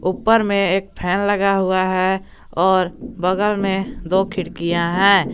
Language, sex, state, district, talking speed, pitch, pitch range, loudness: Hindi, male, Jharkhand, Garhwa, 145 wpm, 190 Hz, 185-200 Hz, -18 LUFS